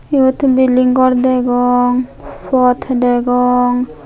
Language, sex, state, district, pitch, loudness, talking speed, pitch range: Chakma, female, Tripura, Unakoti, 250 Hz, -13 LUFS, 90 wpm, 245-255 Hz